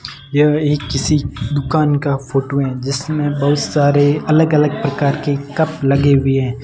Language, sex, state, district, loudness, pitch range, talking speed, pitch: Hindi, male, Rajasthan, Barmer, -16 LUFS, 140-150 Hz, 165 wpm, 145 Hz